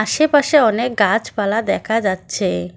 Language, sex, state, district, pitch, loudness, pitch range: Bengali, female, West Bengal, Cooch Behar, 215 Hz, -17 LUFS, 195-235 Hz